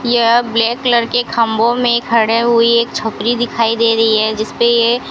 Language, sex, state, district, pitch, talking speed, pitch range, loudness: Hindi, female, Rajasthan, Bikaner, 235 Hz, 175 wpm, 230-240 Hz, -13 LUFS